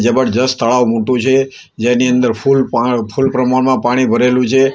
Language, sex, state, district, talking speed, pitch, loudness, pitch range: Gujarati, male, Gujarat, Gandhinagar, 140 wpm, 125 Hz, -13 LUFS, 120-130 Hz